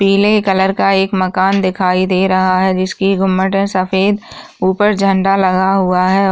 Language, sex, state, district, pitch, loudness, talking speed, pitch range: Hindi, female, Rajasthan, Churu, 190 Hz, -13 LUFS, 170 wpm, 185-195 Hz